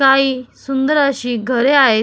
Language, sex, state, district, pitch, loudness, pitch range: Marathi, female, Maharashtra, Solapur, 270 Hz, -15 LUFS, 245-275 Hz